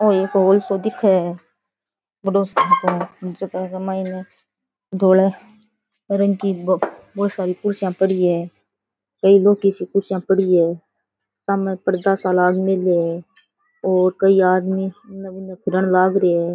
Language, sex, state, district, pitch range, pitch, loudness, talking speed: Rajasthani, female, Rajasthan, Churu, 185-200 Hz, 190 Hz, -18 LUFS, 150 wpm